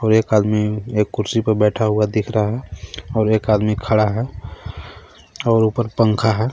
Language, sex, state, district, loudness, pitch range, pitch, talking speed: Hindi, male, Jharkhand, Garhwa, -18 LUFS, 105-110 Hz, 110 Hz, 185 wpm